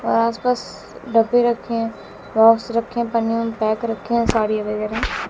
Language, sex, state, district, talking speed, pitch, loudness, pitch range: Hindi, female, Bihar, West Champaran, 160 wpm, 230 Hz, -20 LUFS, 220-235 Hz